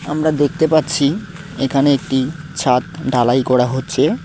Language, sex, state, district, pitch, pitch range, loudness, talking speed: Bengali, male, West Bengal, Cooch Behar, 140 Hz, 130-160 Hz, -17 LUFS, 125 wpm